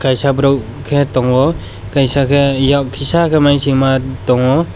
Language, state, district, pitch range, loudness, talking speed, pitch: Kokborok, Tripura, West Tripura, 130-140 Hz, -13 LUFS, 140 wpm, 135 Hz